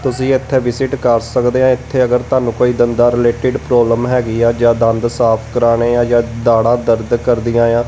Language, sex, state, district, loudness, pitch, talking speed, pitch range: Punjabi, male, Punjab, Kapurthala, -13 LUFS, 120 Hz, 190 wpm, 115-125 Hz